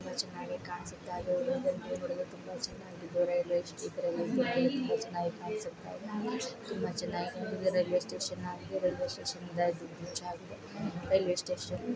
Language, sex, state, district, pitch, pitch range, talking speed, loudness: Kannada, female, Karnataka, Chamarajanagar, 185 Hz, 175-240 Hz, 110 wpm, -35 LUFS